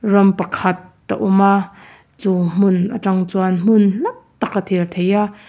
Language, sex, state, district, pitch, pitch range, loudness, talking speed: Mizo, female, Mizoram, Aizawl, 195 Hz, 185-205 Hz, -17 LUFS, 165 wpm